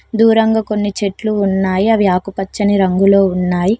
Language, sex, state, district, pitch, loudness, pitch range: Telugu, female, Telangana, Mahabubabad, 200 Hz, -14 LUFS, 190-215 Hz